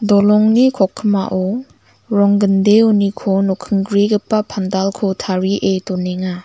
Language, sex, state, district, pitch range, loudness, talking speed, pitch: Garo, female, Meghalaya, West Garo Hills, 190-210 Hz, -15 LUFS, 75 wpm, 200 Hz